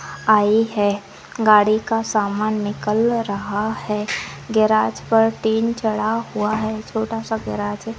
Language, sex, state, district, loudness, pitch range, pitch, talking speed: Hindi, female, Uttarakhand, Uttarkashi, -20 LUFS, 210-225 Hz, 215 Hz, 135 wpm